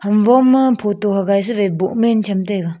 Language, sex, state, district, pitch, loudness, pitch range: Wancho, female, Arunachal Pradesh, Longding, 205 Hz, -15 LUFS, 195-230 Hz